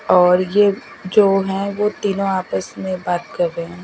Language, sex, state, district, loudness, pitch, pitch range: Hindi, female, Bihar, Katihar, -18 LUFS, 190 Hz, 180-200 Hz